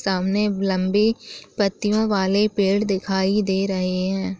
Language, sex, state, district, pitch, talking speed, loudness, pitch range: Chhattisgarhi, female, Chhattisgarh, Jashpur, 195 Hz, 125 wpm, -21 LUFS, 190-210 Hz